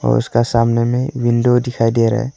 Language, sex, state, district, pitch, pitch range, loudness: Hindi, male, Arunachal Pradesh, Longding, 120 Hz, 115-125 Hz, -16 LUFS